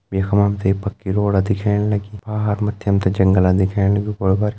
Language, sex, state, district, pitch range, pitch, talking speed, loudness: Hindi, male, Uttarakhand, Uttarkashi, 95-105 Hz, 100 Hz, 235 wpm, -18 LUFS